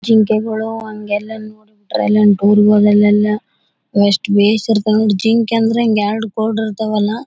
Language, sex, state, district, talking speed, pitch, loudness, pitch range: Kannada, female, Karnataka, Bellary, 125 wpm, 215 Hz, -14 LUFS, 210-220 Hz